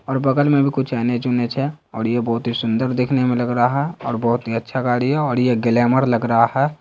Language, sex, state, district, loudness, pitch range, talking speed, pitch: Hindi, male, Bihar, Saharsa, -19 LUFS, 120-135 Hz, 265 wpm, 125 Hz